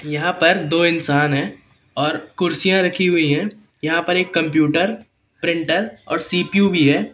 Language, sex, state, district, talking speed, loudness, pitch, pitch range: Hindi, male, Madhya Pradesh, Katni, 160 wpm, -18 LUFS, 165 Hz, 150-180 Hz